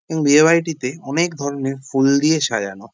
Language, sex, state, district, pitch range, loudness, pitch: Bengali, male, West Bengal, Jalpaiguri, 135-160 Hz, -18 LUFS, 140 Hz